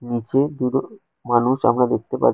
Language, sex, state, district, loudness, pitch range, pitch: Bengali, male, West Bengal, Kolkata, -20 LUFS, 120-135 Hz, 125 Hz